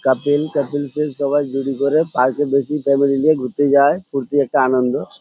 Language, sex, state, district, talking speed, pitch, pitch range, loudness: Bengali, male, West Bengal, Paschim Medinipur, 185 wpm, 140 Hz, 135-145 Hz, -17 LUFS